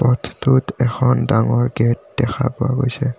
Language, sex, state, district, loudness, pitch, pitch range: Assamese, male, Assam, Kamrup Metropolitan, -18 LUFS, 125 Hz, 120-130 Hz